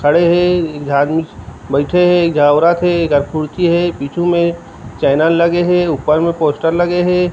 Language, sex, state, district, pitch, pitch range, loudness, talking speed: Chhattisgarhi, male, Chhattisgarh, Rajnandgaon, 170 Hz, 150-175 Hz, -14 LUFS, 145 wpm